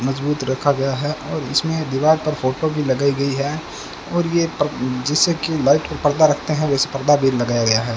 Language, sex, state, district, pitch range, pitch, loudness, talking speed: Hindi, male, Rajasthan, Bikaner, 135-155 Hz, 145 Hz, -19 LUFS, 220 wpm